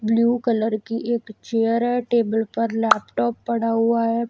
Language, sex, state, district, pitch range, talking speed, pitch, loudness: Hindi, female, Punjab, Kapurthala, 220-235 Hz, 170 wpm, 230 Hz, -21 LUFS